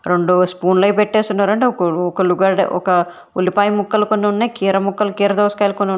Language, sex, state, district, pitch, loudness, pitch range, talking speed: Telugu, female, Telangana, Hyderabad, 200 Hz, -16 LUFS, 180-205 Hz, 170 wpm